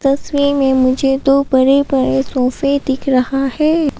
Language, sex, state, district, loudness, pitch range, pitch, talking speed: Hindi, female, Arunachal Pradesh, Papum Pare, -14 LUFS, 265-280 Hz, 270 Hz, 165 wpm